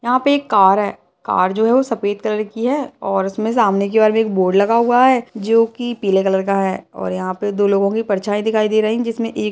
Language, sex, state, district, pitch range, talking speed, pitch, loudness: Hindi, female, Uttarakhand, Uttarkashi, 200-230 Hz, 275 wpm, 215 Hz, -17 LUFS